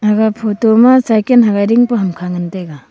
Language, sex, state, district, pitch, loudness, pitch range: Wancho, female, Arunachal Pradesh, Longding, 215 Hz, -12 LUFS, 185-230 Hz